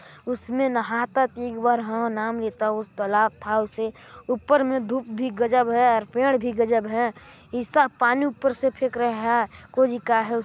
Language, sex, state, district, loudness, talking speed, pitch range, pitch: Hindi, male, Chhattisgarh, Balrampur, -23 LUFS, 190 wpm, 225-255 Hz, 240 Hz